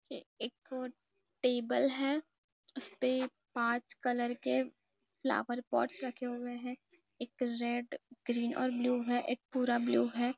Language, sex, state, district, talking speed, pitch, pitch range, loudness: Hindi, female, Maharashtra, Nagpur, 145 wpm, 250 Hz, 240-270 Hz, -35 LUFS